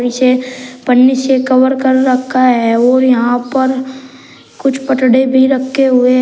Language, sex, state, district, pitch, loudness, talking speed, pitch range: Hindi, male, Uttar Pradesh, Shamli, 255 Hz, -11 LUFS, 145 wpm, 255-265 Hz